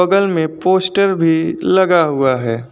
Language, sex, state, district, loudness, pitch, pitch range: Hindi, male, Uttar Pradesh, Lucknow, -14 LUFS, 170 Hz, 155-190 Hz